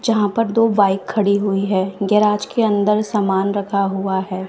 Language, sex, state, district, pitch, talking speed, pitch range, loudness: Hindi, female, Bihar, West Champaran, 200 Hz, 185 wpm, 195-210 Hz, -18 LUFS